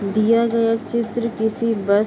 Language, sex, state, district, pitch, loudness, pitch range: Hindi, female, Uttar Pradesh, Hamirpur, 225 Hz, -20 LUFS, 215-230 Hz